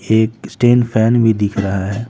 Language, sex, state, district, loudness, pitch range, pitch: Hindi, male, Bihar, Patna, -15 LUFS, 100-115 Hz, 110 Hz